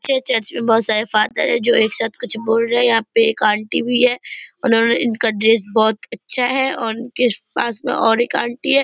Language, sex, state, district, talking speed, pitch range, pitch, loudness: Hindi, female, Bihar, Purnia, 235 wpm, 225-245 Hz, 230 Hz, -16 LUFS